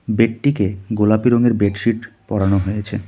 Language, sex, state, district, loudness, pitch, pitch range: Bengali, male, West Bengal, Darjeeling, -18 LUFS, 110 Hz, 100-115 Hz